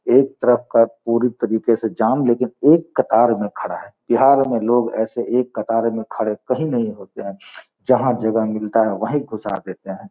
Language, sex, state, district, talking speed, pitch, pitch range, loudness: Hindi, male, Bihar, Gopalganj, 200 wpm, 115 Hz, 110-125 Hz, -18 LUFS